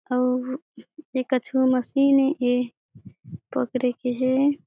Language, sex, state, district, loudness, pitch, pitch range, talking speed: Chhattisgarhi, female, Chhattisgarh, Jashpur, -23 LUFS, 255 Hz, 250-275 Hz, 105 wpm